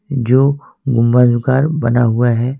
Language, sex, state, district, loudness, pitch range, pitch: Hindi, male, Jharkhand, Ranchi, -14 LUFS, 120-135 Hz, 125 Hz